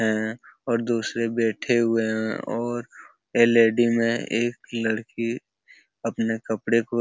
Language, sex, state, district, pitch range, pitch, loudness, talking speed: Hindi, male, Uttar Pradesh, Hamirpur, 110-120 Hz, 115 Hz, -24 LUFS, 130 wpm